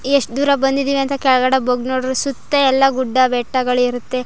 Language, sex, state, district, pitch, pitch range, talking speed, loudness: Kannada, female, Karnataka, Chamarajanagar, 260 Hz, 255-275 Hz, 155 wpm, -16 LUFS